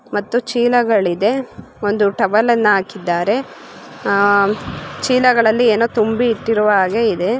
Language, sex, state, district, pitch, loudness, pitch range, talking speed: Kannada, female, Karnataka, Gulbarga, 220 Hz, -16 LUFS, 205-240 Hz, 120 wpm